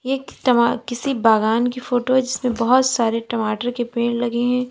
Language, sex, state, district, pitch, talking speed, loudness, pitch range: Hindi, female, Uttar Pradesh, Lalitpur, 245 Hz, 190 wpm, -19 LUFS, 235-250 Hz